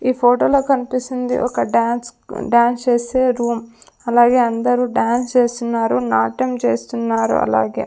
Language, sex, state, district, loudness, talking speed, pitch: Telugu, female, Andhra Pradesh, Sri Satya Sai, -17 LUFS, 115 wpm, 240 Hz